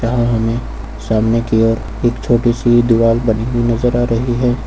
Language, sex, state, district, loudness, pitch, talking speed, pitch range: Hindi, male, Uttar Pradesh, Lucknow, -15 LUFS, 115 Hz, 195 wpm, 115-120 Hz